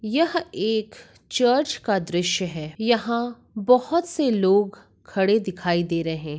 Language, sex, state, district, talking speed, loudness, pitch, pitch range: Hindi, female, Uttar Pradesh, Etah, 140 wpm, -23 LUFS, 215 Hz, 180-245 Hz